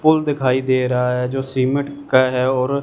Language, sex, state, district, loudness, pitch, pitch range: Hindi, male, Punjab, Fazilka, -18 LUFS, 130 Hz, 130-140 Hz